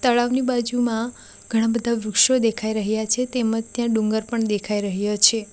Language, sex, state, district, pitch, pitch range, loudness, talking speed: Gujarati, female, Gujarat, Valsad, 225 Hz, 215-240 Hz, -21 LUFS, 165 wpm